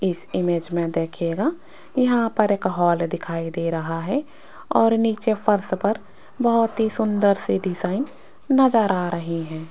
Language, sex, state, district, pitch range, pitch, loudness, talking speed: Hindi, female, Rajasthan, Jaipur, 170-230 Hz, 200 Hz, -22 LUFS, 155 wpm